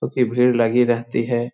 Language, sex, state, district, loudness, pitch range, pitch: Hindi, male, Bihar, Lakhisarai, -19 LUFS, 120-125 Hz, 120 Hz